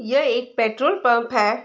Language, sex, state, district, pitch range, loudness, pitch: Hindi, female, Bihar, Saharsa, 225-250 Hz, -20 LUFS, 240 Hz